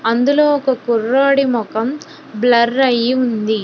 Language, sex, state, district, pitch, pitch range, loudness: Telugu, female, Telangana, Hyderabad, 250 Hz, 230-275 Hz, -15 LUFS